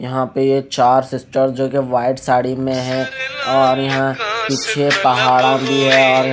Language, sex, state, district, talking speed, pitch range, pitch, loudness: Hindi, male, Haryana, Charkhi Dadri, 160 wpm, 130-135 Hz, 130 Hz, -15 LUFS